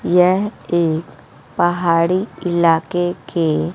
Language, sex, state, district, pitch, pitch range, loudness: Hindi, female, Bihar, West Champaran, 170 Hz, 160-180 Hz, -17 LUFS